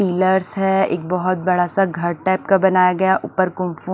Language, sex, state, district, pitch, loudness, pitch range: Hindi, female, Maharashtra, Washim, 185 Hz, -18 LUFS, 180-190 Hz